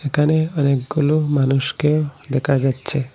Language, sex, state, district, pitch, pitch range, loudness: Bengali, male, Assam, Hailakandi, 140 Hz, 135-150 Hz, -19 LUFS